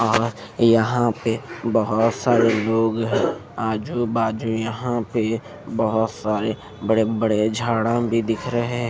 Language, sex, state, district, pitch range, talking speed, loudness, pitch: Hindi, male, Maharashtra, Mumbai Suburban, 110-115 Hz, 135 wpm, -21 LUFS, 115 Hz